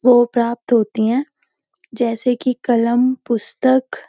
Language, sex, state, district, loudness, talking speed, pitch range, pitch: Hindi, female, Uttarakhand, Uttarkashi, -18 LUFS, 130 wpm, 235-255 Hz, 240 Hz